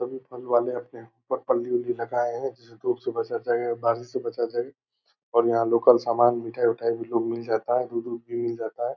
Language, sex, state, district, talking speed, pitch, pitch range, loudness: Angika, male, Bihar, Purnia, 200 wpm, 120 Hz, 115-130 Hz, -26 LUFS